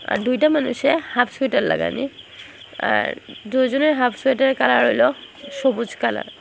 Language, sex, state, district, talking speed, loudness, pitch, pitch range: Bengali, female, Assam, Hailakandi, 140 wpm, -20 LUFS, 265 Hz, 250-285 Hz